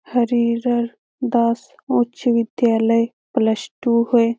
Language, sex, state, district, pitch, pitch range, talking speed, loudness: Hindi, female, Bihar, Lakhisarai, 235 Hz, 230-245 Hz, 95 wpm, -19 LUFS